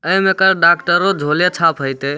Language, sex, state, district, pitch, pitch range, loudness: Maithili, male, Bihar, Samastipur, 170 Hz, 150-190 Hz, -14 LUFS